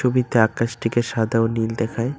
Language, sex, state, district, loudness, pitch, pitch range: Bengali, male, West Bengal, Cooch Behar, -21 LUFS, 115 Hz, 115-120 Hz